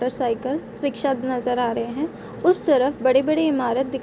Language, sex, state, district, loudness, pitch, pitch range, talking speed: Hindi, female, Bihar, Gopalganj, -22 LUFS, 260 Hz, 245-280 Hz, 210 wpm